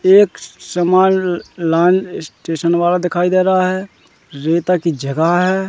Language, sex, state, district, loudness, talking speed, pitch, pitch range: Hindi, male, Madhya Pradesh, Katni, -15 LUFS, 145 wpm, 180 Hz, 170-185 Hz